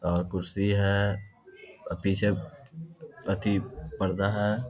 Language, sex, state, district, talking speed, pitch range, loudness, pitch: Hindi, male, Bihar, Darbhanga, 100 wpm, 95-115 Hz, -29 LUFS, 100 Hz